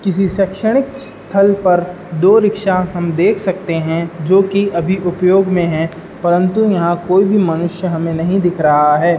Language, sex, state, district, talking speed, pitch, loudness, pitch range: Hindi, male, Uttar Pradesh, Ghazipur, 175 wpm, 180 Hz, -14 LUFS, 170-195 Hz